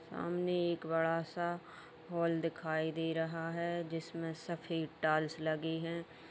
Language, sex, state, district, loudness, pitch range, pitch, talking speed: Hindi, female, Uttar Pradesh, Etah, -37 LUFS, 160-170 Hz, 165 Hz, 135 wpm